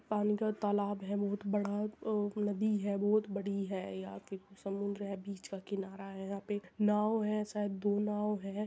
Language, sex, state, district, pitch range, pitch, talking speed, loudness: Hindi, female, Uttar Pradesh, Muzaffarnagar, 195-210 Hz, 205 Hz, 195 wpm, -36 LUFS